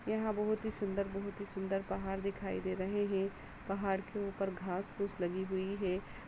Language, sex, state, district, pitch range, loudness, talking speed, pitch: Hindi, female, Chhattisgarh, Kabirdham, 190-200 Hz, -38 LUFS, 190 wpm, 195 Hz